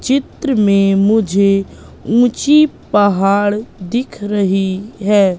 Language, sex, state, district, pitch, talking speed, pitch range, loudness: Hindi, female, Madhya Pradesh, Katni, 205 Hz, 90 wpm, 195-235 Hz, -14 LUFS